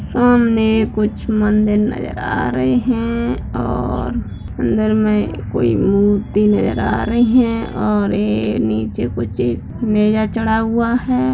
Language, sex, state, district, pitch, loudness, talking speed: Hindi, female, Bihar, Madhepura, 195 Hz, -17 LUFS, 120 wpm